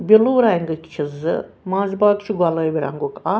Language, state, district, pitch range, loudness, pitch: Kashmiri, Punjab, Kapurthala, 160-210 Hz, -19 LUFS, 185 Hz